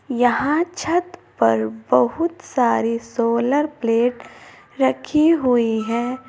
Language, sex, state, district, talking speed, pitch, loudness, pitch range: Hindi, female, Uttar Pradesh, Saharanpur, 95 wpm, 245 Hz, -19 LUFS, 230-300 Hz